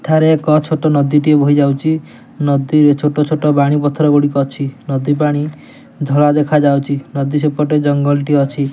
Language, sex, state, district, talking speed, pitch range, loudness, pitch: Odia, male, Odisha, Nuapada, 165 wpm, 140-150 Hz, -14 LUFS, 145 Hz